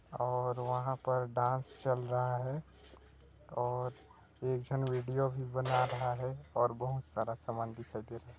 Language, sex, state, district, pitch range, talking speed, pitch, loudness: Hindi, male, Chhattisgarh, Sarguja, 115-130 Hz, 165 wpm, 125 Hz, -36 LUFS